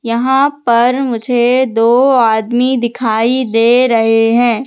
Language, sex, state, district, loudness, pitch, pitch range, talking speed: Hindi, female, Madhya Pradesh, Katni, -12 LUFS, 240 Hz, 230-255 Hz, 115 wpm